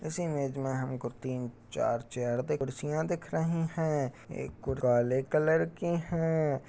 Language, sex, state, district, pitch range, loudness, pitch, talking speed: Hindi, male, Uttar Pradesh, Jalaun, 125-160 Hz, -32 LUFS, 140 Hz, 145 wpm